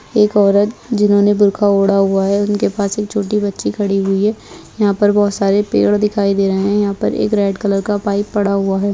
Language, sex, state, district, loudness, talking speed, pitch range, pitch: Hindi, female, Bihar, Purnia, -15 LUFS, 240 wpm, 200-205 Hz, 205 Hz